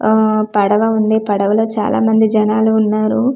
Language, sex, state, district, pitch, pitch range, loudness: Telugu, female, Andhra Pradesh, Manyam, 215 Hz, 215-220 Hz, -14 LUFS